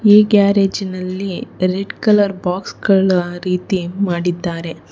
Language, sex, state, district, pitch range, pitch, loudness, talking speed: Kannada, female, Karnataka, Bangalore, 180-200 Hz, 190 Hz, -17 LUFS, 85 wpm